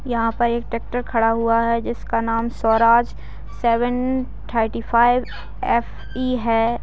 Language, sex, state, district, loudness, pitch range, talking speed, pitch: Hindi, female, Bihar, Jamui, -20 LUFS, 230-240 Hz, 140 wpm, 235 Hz